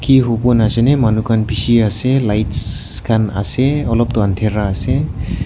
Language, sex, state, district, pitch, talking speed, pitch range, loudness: Nagamese, male, Nagaland, Kohima, 115 Hz, 155 wpm, 105-125 Hz, -15 LUFS